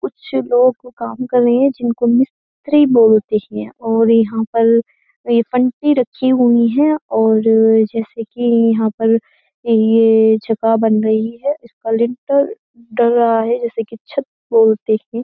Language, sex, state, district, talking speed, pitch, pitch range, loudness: Hindi, female, Uttar Pradesh, Jyotiba Phule Nagar, 150 wpm, 230 Hz, 225-250 Hz, -15 LUFS